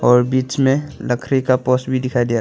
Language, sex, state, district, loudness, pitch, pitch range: Hindi, male, Arunachal Pradesh, Longding, -18 LUFS, 130 Hz, 125-135 Hz